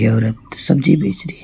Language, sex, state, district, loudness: Hindi, male, West Bengal, Alipurduar, -17 LUFS